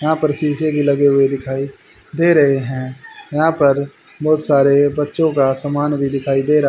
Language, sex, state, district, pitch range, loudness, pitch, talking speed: Hindi, male, Haryana, Rohtak, 135-150 Hz, -16 LUFS, 145 Hz, 190 wpm